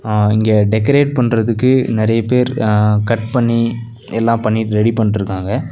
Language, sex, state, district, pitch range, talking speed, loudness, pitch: Tamil, male, Tamil Nadu, Nilgiris, 110-120 Hz, 135 wpm, -15 LUFS, 115 Hz